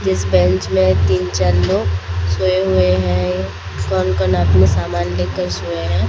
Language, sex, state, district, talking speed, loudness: Hindi, female, Odisha, Sambalpur, 140 wpm, -16 LUFS